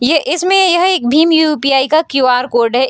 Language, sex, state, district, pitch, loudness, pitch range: Hindi, female, Bihar, Sitamarhi, 295 Hz, -12 LUFS, 255-330 Hz